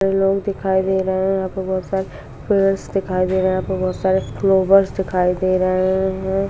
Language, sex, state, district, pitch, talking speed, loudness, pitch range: Hindi, female, Bihar, Kishanganj, 190 Hz, 210 wpm, -19 LUFS, 185-195 Hz